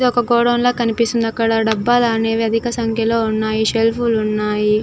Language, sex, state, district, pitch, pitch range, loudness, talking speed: Telugu, female, Andhra Pradesh, Chittoor, 225 Hz, 220-235 Hz, -17 LUFS, 125 wpm